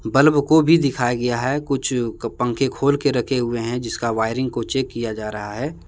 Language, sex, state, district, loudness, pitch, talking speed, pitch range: Hindi, male, Jharkhand, Deoghar, -20 LUFS, 125 Hz, 215 wpm, 115-140 Hz